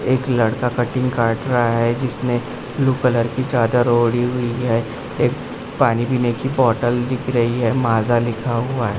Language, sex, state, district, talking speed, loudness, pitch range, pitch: Hindi, male, Bihar, Gaya, 175 wpm, -19 LUFS, 115-125 Hz, 120 Hz